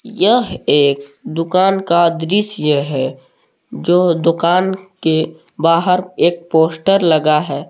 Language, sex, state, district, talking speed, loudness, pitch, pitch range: Hindi, male, Jharkhand, Palamu, 110 wpm, -15 LUFS, 165 Hz, 155-185 Hz